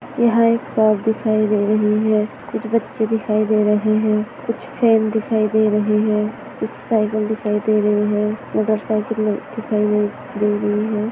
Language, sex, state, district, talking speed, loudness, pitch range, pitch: Hindi, female, Maharashtra, Aurangabad, 165 wpm, -19 LUFS, 210-220 Hz, 215 Hz